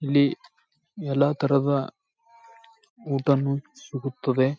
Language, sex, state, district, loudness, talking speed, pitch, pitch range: Kannada, male, Karnataka, Bijapur, -25 LUFS, 65 wpm, 140 Hz, 140-225 Hz